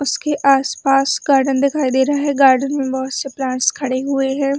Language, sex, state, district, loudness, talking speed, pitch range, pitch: Hindi, female, Chhattisgarh, Bilaspur, -16 LUFS, 195 wpm, 265-280 Hz, 275 Hz